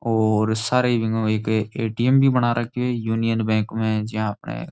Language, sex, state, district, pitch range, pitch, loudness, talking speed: Rajasthani, male, Rajasthan, Churu, 110-120 Hz, 110 Hz, -21 LUFS, 190 wpm